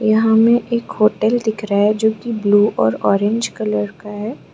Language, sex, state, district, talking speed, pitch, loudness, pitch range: Hindi, female, Arunachal Pradesh, Lower Dibang Valley, 200 wpm, 215 Hz, -17 LUFS, 205-225 Hz